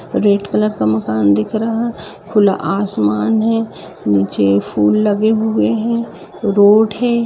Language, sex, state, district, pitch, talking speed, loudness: Hindi, female, Jharkhand, Jamtara, 205 Hz, 130 wpm, -15 LUFS